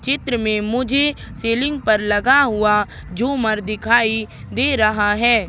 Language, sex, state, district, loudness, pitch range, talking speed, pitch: Hindi, female, Madhya Pradesh, Katni, -18 LUFS, 215-260 Hz, 130 wpm, 225 Hz